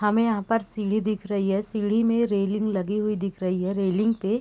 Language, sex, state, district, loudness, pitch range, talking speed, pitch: Hindi, female, Bihar, Gopalganj, -25 LUFS, 195-215 Hz, 270 wpm, 210 Hz